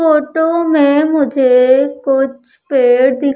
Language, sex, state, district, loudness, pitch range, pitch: Hindi, female, Madhya Pradesh, Umaria, -12 LUFS, 265-300 Hz, 275 Hz